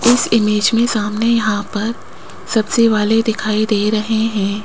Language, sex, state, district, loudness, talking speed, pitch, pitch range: Hindi, female, Rajasthan, Jaipur, -16 LUFS, 155 wpm, 220 Hz, 210-225 Hz